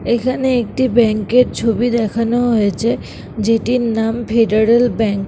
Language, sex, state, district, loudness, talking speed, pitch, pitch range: Bengali, female, West Bengal, Kolkata, -15 LUFS, 135 wpm, 230 Hz, 220-245 Hz